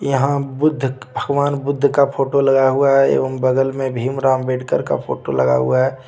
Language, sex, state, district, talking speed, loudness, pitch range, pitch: Hindi, male, Jharkhand, Deoghar, 190 wpm, -17 LUFS, 130-140 Hz, 135 Hz